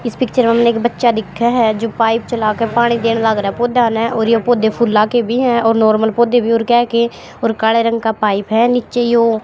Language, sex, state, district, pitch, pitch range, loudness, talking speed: Hindi, female, Haryana, Jhajjar, 230 Hz, 220-235 Hz, -14 LUFS, 250 wpm